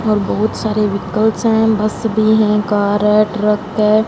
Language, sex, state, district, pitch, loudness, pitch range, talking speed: Hindi, female, Punjab, Fazilka, 215 Hz, -15 LUFS, 210-220 Hz, 175 wpm